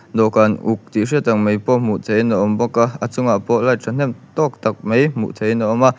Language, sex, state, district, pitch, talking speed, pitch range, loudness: Mizo, male, Mizoram, Aizawl, 115 Hz, 280 wpm, 110-120 Hz, -17 LUFS